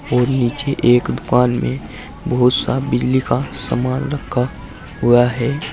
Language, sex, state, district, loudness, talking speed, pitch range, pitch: Hindi, male, Uttar Pradesh, Saharanpur, -17 LUFS, 135 wpm, 120-135 Hz, 125 Hz